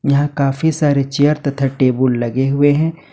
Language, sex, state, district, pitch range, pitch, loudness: Hindi, male, Jharkhand, Ranchi, 135-145 Hz, 140 Hz, -16 LUFS